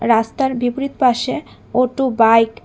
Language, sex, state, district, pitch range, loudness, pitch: Bengali, female, Tripura, West Tripura, 230-265 Hz, -17 LUFS, 245 Hz